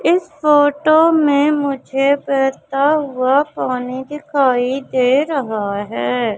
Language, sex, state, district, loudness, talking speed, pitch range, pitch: Hindi, female, Madhya Pradesh, Katni, -16 LUFS, 105 wpm, 255-295 Hz, 275 Hz